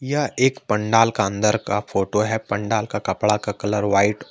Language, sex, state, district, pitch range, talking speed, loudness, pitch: Hindi, male, Jharkhand, Ranchi, 100-115 Hz, 210 wpm, -21 LUFS, 105 Hz